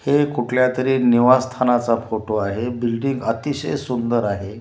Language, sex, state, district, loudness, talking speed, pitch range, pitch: Marathi, male, Maharashtra, Washim, -19 LUFS, 130 wpm, 115-130 Hz, 120 Hz